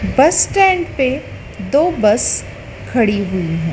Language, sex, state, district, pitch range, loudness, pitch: Hindi, female, Madhya Pradesh, Dhar, 195-295 Hz, -15 LUFS, 230 Hz